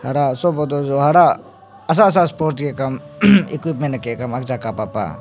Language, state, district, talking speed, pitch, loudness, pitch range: Nyishi, Arunachal Pradesh, Papum Pare, 160 wpm, 145 Hz, -17 LUFS, 130-165 Hz